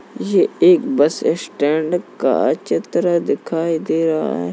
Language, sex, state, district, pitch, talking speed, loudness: Hindi, male, Uttar Pradesh, Jalaun, 170 Hz, 135 wpm, -17 LUFS